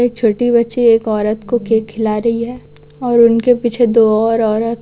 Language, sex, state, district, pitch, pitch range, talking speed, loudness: Hindi, female, Jharkhand, Deoghar, 230 Hz, 220-235 Hz, 200 wpm, -14 LUFS